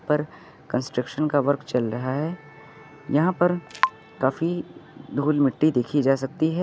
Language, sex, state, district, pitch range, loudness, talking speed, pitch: Hindi, male, Uttar Pradesh, Lucknow, 135-155 Hz, -24 LUFS, 145 wpm, 145 Hz